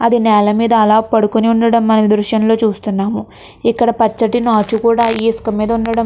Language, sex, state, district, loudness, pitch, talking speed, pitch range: Telugu, female, Andhra Pradesh, Krishna, -13 LUFS, 225 Hz, 180 wpm, 215-230 Hz